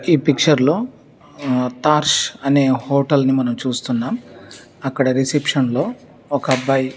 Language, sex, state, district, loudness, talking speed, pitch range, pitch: Telugu, male, Andhra Pradesh, Chittoor, -18 LUFS, 105 wpm, 130-150 Hz, 135 Hz